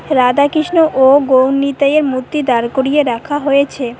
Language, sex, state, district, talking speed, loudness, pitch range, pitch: Bengali, female, West Bengal, Cooch Behar, 120 wpm, -13 LUFS, 260-290 Hz, 275 Hz